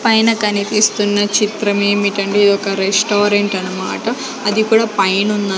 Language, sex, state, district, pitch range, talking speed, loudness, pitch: Telugu, female, Andhra Pradesh, Sri Satya Sai, 200-215 Hz, 120 wpm, -15 LUFS, 205 Hz